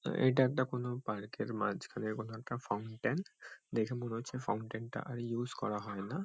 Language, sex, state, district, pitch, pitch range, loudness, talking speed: Bengali, male, West Bengal, Kolkata, 115 Hz, 110-125 Hz, -37 LUFS, 165 wpm